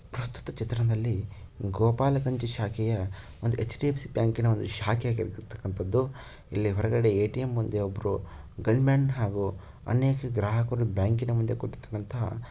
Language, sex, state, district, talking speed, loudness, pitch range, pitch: Kannada, male, Karnataka, Shimoga, 140 wpm, -29 LUFS, 105-120 Hz, 115 Hz